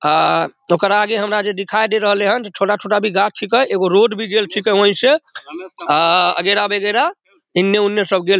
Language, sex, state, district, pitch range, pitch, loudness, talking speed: Maithili, male, Bihar, Samastipur, 200-220 Hz, 205 Hz, -15 LUFS, 185 wpm